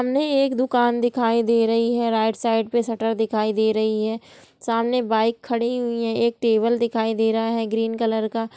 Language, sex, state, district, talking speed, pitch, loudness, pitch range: Hindi, female, Bihar, Gopalganj, 205 wpm, 230 Hz, -21 LUFS, 225-235 Hz